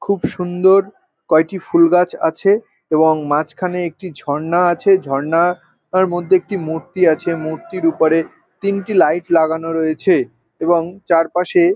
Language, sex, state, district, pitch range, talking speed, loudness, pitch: Bengali, male, West Bengal, North 24 Parganas, 160-185 Hz, 130 wpm, -16 LUFS, 170 Hz